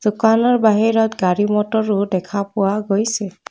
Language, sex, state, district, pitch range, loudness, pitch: Assamese, female, Assam, Kamrup Metropolitan, 200-220 Hz, -17 LUFS, 210 Hz